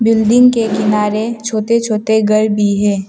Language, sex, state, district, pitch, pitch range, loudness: Hindi, female, Arunachal Pradesh, Papum Pare, 215 Hz, 210-225 Hz, -13 LUFS